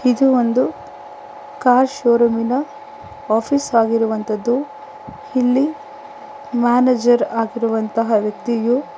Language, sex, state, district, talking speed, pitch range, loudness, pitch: Kannada, female, Karnataka, Bangalore, 65 wpm, 230-285 Hz, -17 LUFS, 250 Hz